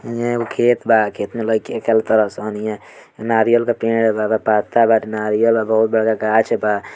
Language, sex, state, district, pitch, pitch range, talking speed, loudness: Bhojpuri, male, Bihar, Muzaffarpur, 110 Hz, 110-115 Hz, 215 wpm, -17 LUFS